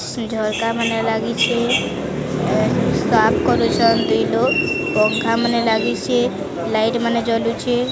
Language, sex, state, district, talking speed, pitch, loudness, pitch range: Odia, male, Odisha, Sambalpur, 115 wpm, 230 Hz, -18 LUFS, 225-235 Hz